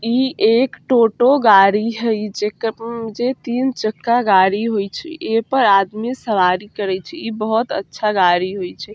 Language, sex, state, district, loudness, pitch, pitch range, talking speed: Bajjika, female, Bihar, Vaishali, -17 LUFS, 225 Hz, 200-240 Hz, 165 wpm